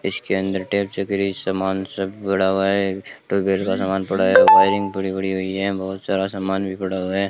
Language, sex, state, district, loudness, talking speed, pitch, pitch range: Hindi, male, Rajasthan, Bikaner, -20 LUFS, 215 wpm, 95 Hz, 95-100 Hz